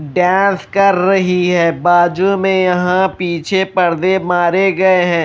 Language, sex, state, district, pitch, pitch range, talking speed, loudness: Hindi, male, Odisha, Malkangiri, 180 Hz, 175-190 Hz, 135 wpm, -13 LUFS